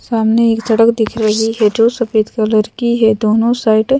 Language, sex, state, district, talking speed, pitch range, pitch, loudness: Hindi, female, Madhya Pradesh, Bhopal, 210 wpm, 220-235 Hz, 225 Hz, -13 LUFS